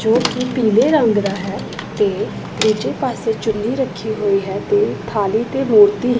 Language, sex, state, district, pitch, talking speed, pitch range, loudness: Punjabi, female, Punjab, Pathankot, 225 Hz, 165 wpm, 210-250 Hz, -17 LUFS